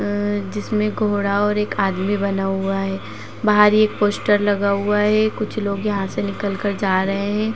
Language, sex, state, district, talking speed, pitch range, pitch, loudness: Hindi, female, Uttar Pradesh, Jalaun, 185 wpm, 200-210 Hz, 205 Hz, -19 LUFS